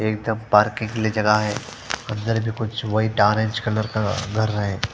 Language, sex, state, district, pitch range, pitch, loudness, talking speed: Hindi, female, Punjab, Fazilka, 105-110 Hz, 110 Hz, -22 LUFS, 185 wpm